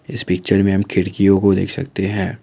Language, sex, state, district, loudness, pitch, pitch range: Hindi, male, Assam, Kamrup Metropolitan, -17 LUFS, 100 Hz, 95-115 Hz